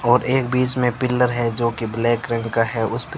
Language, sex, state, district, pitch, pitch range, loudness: Hindi, male, Rajasthan, Bikaner, 120 Hz, 115-125 Hz, -20 LUFS